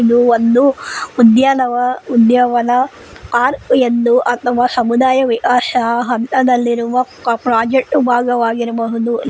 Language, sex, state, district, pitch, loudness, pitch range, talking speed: Kannada, female, Karnataka, Koppal, 245 Hz, -14 LUFS, 235-255 Hz, 75 wpm